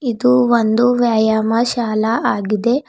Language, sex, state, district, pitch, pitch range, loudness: Kannada, female, Karnataka, Bidar, 235 Hz, 220-245 Hz, -15 LUFS